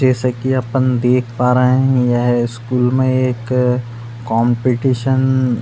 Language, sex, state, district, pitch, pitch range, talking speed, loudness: Hindi, male, Uttar Pradesh, Budaun, 125 Hz, 120-130 Hz, 140 wpm, -16 LUFS